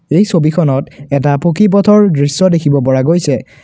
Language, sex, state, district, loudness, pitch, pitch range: Assamese, male, Assam, Kamrup Metropolitan, -11 LUFS, 155 Hz, 140-185 Hz